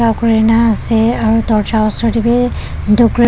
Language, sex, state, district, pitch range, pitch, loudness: Nagamese, female, Nagaland, Dimapur, 220-235 Hz, 230 Hz, -13 LUFS